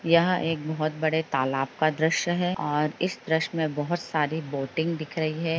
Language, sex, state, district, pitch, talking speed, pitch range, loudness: Hindi, female, Jharkhand, Jamtara, 160 Hz, 180 wpm, 150-165 Hz, -26 LUFS